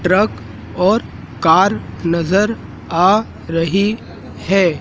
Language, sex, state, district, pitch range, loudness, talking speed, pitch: Hindi, male, Madhya Pradesh, Dhar, 170-205 Hz, -16 LUFS, 85 wpm, 190 Hz